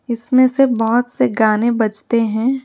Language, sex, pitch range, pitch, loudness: Hindi, female, 225-255 Hz, 235 Hz, -16 LUFS